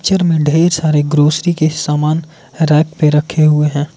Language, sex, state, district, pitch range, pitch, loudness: Hindi, male, Arunachal Pradesh, Lower Dibang Valley, 150-165 Hz, 155 Hz, -13 LUFS